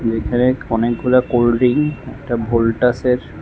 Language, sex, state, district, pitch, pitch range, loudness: Bengali, male, Tripura, West Tripura, 120 Hz, 115-125 Hz, -17 LUFS